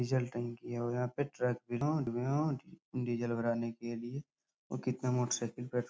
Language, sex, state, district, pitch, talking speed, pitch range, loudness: Hindi, male, Bihar, Supaul, 125 Hz, 185 wpm, 120-130 Hz, -36 LUFS